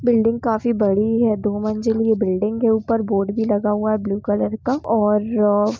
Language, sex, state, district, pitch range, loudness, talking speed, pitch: Hindi, female, Jharkhand, Jamtara, 210-225 Hz, -19 LUFS, 185 wpm, 220 Hz